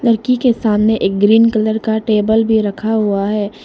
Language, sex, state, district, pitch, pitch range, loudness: Hindi, female, Arunachal Pradesh, Lower Dibang Valley, 220 Hz, 210-225 Hz, -14 LUFS